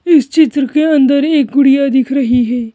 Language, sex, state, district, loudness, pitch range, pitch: Hindi, female, Madhya Pradesh, Bhopal, -11 LUFS, 260-300 Hz, 280 Hz